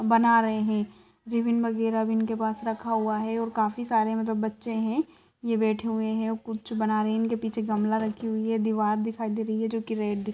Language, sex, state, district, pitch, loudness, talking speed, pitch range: Hindi, female, Maharashtra, Solapur, 225 Hz, -27 LUFS, 220 wpm, 220-225 Hz